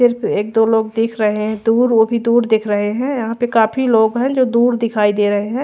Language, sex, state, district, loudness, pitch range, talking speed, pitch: Hindi, female, Odisha, Khordha, -15 LUFS, 215-240 Hz, 265 wpm, 225 Hz